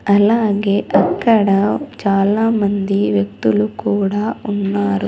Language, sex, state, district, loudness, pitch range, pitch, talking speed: Telugu, female, Andhra Pradesh, Sri Satya Sai, -16 LUFS, 195-210 Hz, 200 Hz, 85 wpm